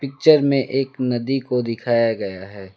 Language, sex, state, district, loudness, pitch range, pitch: Hindi, male, West Bengal, Alipurduar, -20 LUFS, 115-135 Hz, 125 Hz